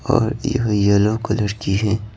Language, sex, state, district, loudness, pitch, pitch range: Hindi, male, Bihar, Patna, -19 LUFS, 105 Hz, 105-115 Hz